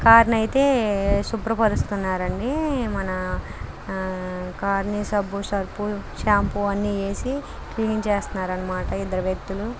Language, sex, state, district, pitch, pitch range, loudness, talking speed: Telugu, female, Andhra Pradesh, Krishna, 200 Hz, 190-220 Hz, -24 LUFS, 105 wpm